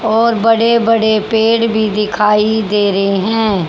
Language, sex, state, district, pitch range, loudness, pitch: Hindi, female, Haryana, Charkhi Dadri, 210-225 Hz, -13 LUFS, 220 Hz